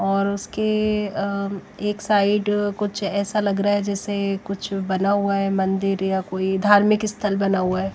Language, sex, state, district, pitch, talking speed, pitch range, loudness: Hindi, female, Bihar, West Champaran, 200 Hz, 165 wpm, 195-205 Hz, -22 LUFS